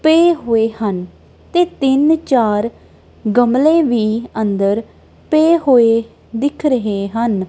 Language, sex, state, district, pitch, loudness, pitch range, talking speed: Punjabi, female, Punjab, Kapurthala, 235 Hz, -15 LUFS, 220-300 Hz, 110 wpm